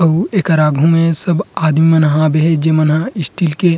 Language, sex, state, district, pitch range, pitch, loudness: Chhattisgarhi, male, Chhattisgarh, Rajnandgaon, 155-165 Hz, 160 Hz, -13 LUFS